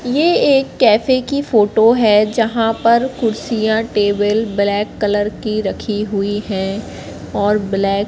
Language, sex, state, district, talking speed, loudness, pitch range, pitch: Hindi, female, Madhya Pradesh, Katni, 140 wpm, -16 LUFS, 205-235 Hz, 215 Hz